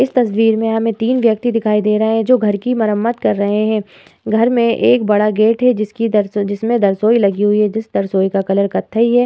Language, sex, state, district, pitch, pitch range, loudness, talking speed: Hindi, female, Uttar Pradesh, Muzaffarnagar, 220 Hz, 210-230 Hz, -15 LUFS, 225 wpm